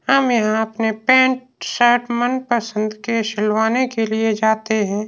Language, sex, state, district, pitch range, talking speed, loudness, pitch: Hindi, male, Uttar Pradesh, Varanasi, 220-250 Hz, 140 wpm, -18 LUFS, 225 Hz